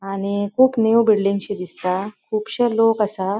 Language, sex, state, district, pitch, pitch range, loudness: Konkani, female, Goa, North and South Goa, 205 Hz, 195-225 Hz, -19 LUFS